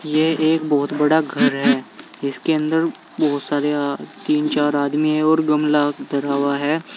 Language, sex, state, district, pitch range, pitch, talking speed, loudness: Hindi, male, Uttar Pradesh, Saharanpur, 145-155 Hz, 150 Hz, 170 wpm, -19 LUFS